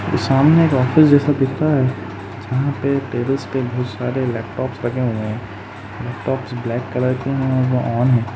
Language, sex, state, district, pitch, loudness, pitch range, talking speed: Hindi, male, Uttar Pradesh, Jalaun, 125 Hz, -18 LUFS, 120-135 Hz, 185 wpm